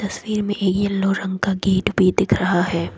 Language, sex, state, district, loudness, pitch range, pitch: Hindi, female, Assam, Kamrup Metropolitan, -20 LUFS, 185-205 Hz, 195 Hz